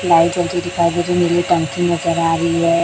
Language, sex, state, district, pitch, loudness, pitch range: Hindi, male, Chhattisgarh, Raipur, 170 Hz, -16 LUFS, 170-175 Hz